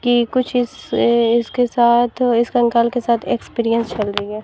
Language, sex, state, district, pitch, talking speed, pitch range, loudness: Hindi, female, Bihar, West Champaran, 235 Hz, 175 wpm, 230-245 Hz, -17 LUFS